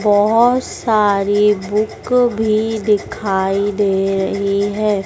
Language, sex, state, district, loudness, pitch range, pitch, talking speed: Hindi, female, Madhya Pradesh, Dhar, -16 LUFS, 200-220 Hz, 205 Hz, 95 wpm